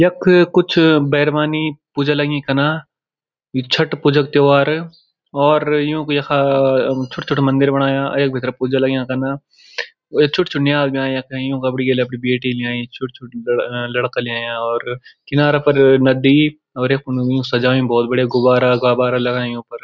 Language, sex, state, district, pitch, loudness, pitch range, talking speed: Garhwali, male, Uttarakhand, Uttarkashi, 135 Hz, -16 LUFS, 125-145 Hz, 155 wpm